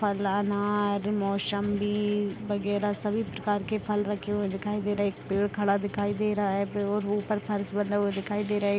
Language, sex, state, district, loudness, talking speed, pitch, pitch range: Hindi, female, Bihar, Darbhanga, -28 LUFS, 175 wpm, 205 Hz, 200-205 Hz